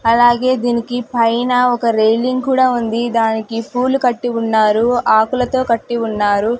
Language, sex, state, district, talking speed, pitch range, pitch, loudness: Telugu, female, Andhra Pradesh, Sri Satya Sai, 125 wpm, 225-250 Hz, 235 Hz, -15 LUFS